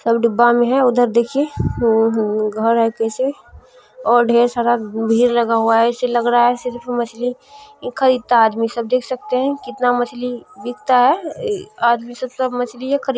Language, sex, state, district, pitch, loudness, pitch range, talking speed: Maithili, female, Bihar, Supaul, 245 Hz, -17 LUFS, 235-255 Hz, 185 wpm